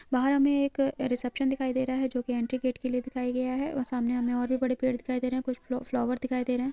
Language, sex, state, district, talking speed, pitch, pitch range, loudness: Hindi, female, Uttarakhand, Uttarkashi, 295 wpm, 255 Hz, 250-265 Hz, -29 LUFS